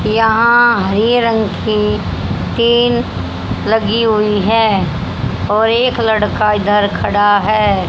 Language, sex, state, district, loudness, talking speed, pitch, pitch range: Hindi, female, Haryana, Jhajjar, -13 LUFS, 105 wpm, 215 Hz, 205-230 Hz